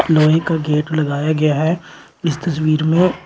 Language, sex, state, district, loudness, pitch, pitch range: Hindi, male, Uttar Pradesh, Shamli, -17 LUFS, 155 Hz, 155-165 Hz